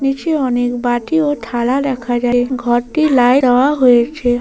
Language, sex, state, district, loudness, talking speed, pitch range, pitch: Bengali, female, West Bengal, Paschim Medinipur, -14 LUFS, 150 wpm, 245-275 Hz, 250 Hz